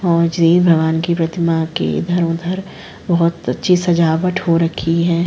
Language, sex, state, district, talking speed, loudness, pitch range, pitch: Hindi, female, Uttar Pradesh, Jalaun, 150 wpm, -16 LUFS, 165-175 Hz, 170 Hz